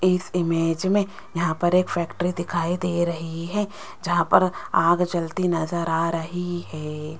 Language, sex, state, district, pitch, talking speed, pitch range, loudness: Hindi, female, Rajasthan, Jaipur, 175 Hz, 160 wpm, 165-180 Hz, -24 LUFS